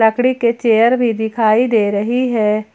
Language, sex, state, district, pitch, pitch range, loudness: Hindi, female, Jharkhand, Ranchi, 225 Hz, 220-245 Hz, -15 LUFS